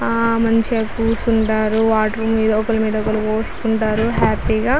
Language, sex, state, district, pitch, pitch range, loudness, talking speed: Telugu, female, Andhra Pradesh, Chittoor, 220 Hz, 220-225 Hz, -18 LUFS, 150 wpm